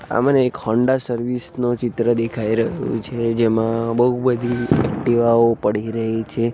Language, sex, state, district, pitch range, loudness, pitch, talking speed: Gujarati, male, Gujarat, Gandhinagar, 115-125 Hz, -19 LUFS, 120 Hz, 155 wpm